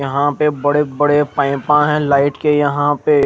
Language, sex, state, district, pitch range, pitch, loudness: Hindi, male, Odisha, Khordha, 140-150 Hz, 145 Hz, -15 LUFS